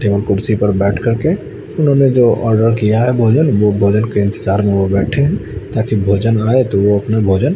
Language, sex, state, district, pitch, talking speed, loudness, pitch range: Hindi, male, Chandigarh, Chandigarh, 110 Hz, 205 wpm, -14 LUFS, 100-120 Hz